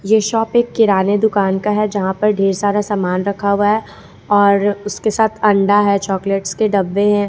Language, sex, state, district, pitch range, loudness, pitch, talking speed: Hindi, female, Jharkhand, Ranchi, 200-210 Hz, -15 LUFS, 205 Hz, 200 wpm